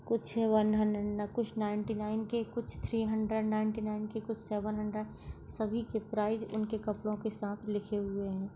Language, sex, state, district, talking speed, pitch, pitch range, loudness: Hindi, female, Maharashtra, Solapur, 190 wpm, 215 Hz, 210-220 Hz, -34 LUFS